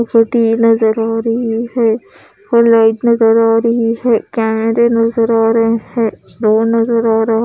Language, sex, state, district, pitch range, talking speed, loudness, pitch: Hindi, female, Odisha, Khordha, 225-230 Hz, 160 wpm, -13 LUFS, 230 Hz